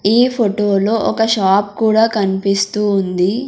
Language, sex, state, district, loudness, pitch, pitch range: Telugu, female, Andhra Pradesh, Sri Satya Sai, -15 LUFS, 205 Hz, 195-225 Hz